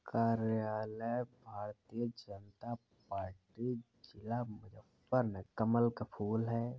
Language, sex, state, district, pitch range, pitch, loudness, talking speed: Hindi, male, Uttar Pradesh, Muzaffarnagar, 105-120 Hz, 115 Hz, -39 LUFS, 95 wpm